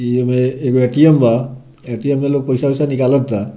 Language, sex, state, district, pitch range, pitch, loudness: Bhojpuri, male, Bihar, Muzaffarpur, 125-140 Hz, 130 Hz, -15 LUFS